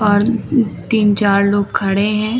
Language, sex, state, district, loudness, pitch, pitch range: Hindi, female, Uttar Pradesh, Lucknow, -15 LUFS, 205 Hz, 200-220 Hz